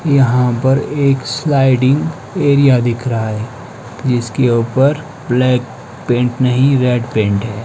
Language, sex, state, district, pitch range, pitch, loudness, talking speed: Hindi, male, Himachal Pradesh, Shimla, 120-135 Hz, 125 Hz, -14 LUFS, 125 wpm